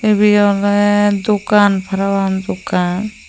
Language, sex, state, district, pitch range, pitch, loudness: Chakma, female, Tripura, Unakoti, 195-210 Hz, 205 Hz, -14 LUFS